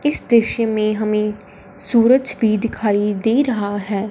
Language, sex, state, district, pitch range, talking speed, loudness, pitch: Hindi, female, Punjab, Fazilka, 205-230 Hz, 145 wpm, -17 LUFS, 215 Hz